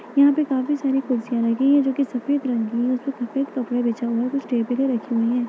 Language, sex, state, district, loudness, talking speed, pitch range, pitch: Hindi, female, Bihar, Bhagalpur, -22 LUFS, 260 wpm, 240-275 Hz, 255 Hz